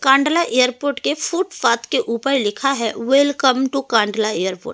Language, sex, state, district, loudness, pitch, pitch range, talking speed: Hindi, female, Delhi, New Delhi, -18 LUFS, 265 Hz, 230-285 Hz, 165 wpm